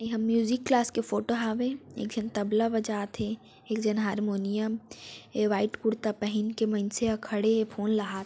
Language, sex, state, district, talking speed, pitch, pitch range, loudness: Chhattisgarhi, female, Chhattisgarh, Raigarh, 180 wpm, 220 Hz, 210-225 Hz, -29 LUFS